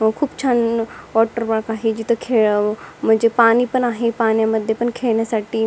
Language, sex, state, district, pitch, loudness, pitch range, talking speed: Marathi, female, Maharashtra, Dhule, 225 Hz, -18 LUFS, 220-235 Hz, 160 wpm